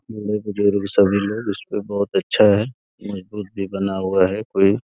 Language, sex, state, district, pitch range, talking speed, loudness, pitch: Hindi, male, Uttar Pradesh, Deoria, 100-105 Hz, 145 wpm, -20 LUFS, 100 Hz